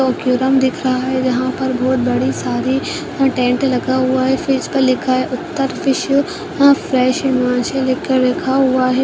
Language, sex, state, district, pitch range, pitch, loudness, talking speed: Kumaoni, female, Uttarakhand, Uttarkashi, 255-270 Hz, 260 Hz, -16 LUFS, 200 wpm